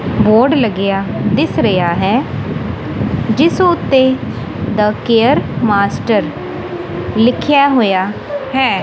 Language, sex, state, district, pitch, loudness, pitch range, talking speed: Punjabi, female, Punjab, Kapurthala, 235 Hz, -14 LUFS, 205-270 Hz, 90 wpm